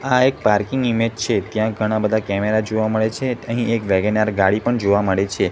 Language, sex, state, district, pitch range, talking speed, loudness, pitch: Gujarati, male, Gujarat, Gandhinagar, 105-115 Hz, 230 wpm, -19 LUFS, 110 Hz